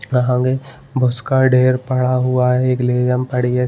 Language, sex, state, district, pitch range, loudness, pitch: Hindi, male, Chhattisgarh, Bilaspur, 125-130 Hz, -16 LUFS, 125 Hz